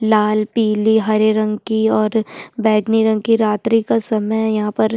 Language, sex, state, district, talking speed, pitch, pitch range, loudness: Hindi, female, Chhattisgarh, Bastar, 205 wpm, 220 Hz, 215-220 Hz, -16 LUFS